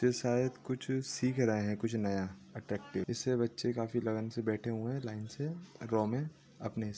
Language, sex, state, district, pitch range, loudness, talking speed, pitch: Hindi, male, Maharashtra, Nagpur, 110-130 Hz, -36 LUFS, 165 wpm, 120 Hz